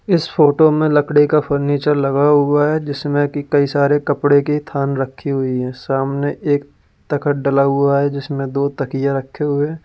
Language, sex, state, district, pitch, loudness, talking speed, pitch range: Hindi, male, Uttar Pradesh, Lalitpur, 145 Hz, -17 LUFS, 180 wpm, 140-145 Hz